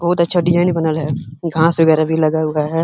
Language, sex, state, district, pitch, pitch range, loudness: Hindi, male, Uttar Pradesh, Hamirpur, 160 Hz, 155-170 Hz, -16 LUFS